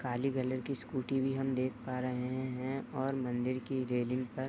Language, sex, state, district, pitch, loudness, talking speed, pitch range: Hindi, male, Uttar Pradesh, Gorakhpur, 130 Hz, -36 LUFS, 215 wpm, 125-135 Hz